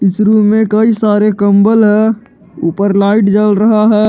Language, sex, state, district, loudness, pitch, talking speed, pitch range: Hindi, male, Jharkhand, Garhwa, -10 LUFS, 210 Hz, 175 wpm, 205-215 Hz